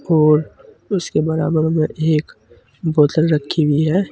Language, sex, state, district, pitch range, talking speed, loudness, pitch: Hindi, male, Uttar Pradesh, Saharanpur, 150-160 Hz, 130 wpm, -17 LUFS, 155 Hz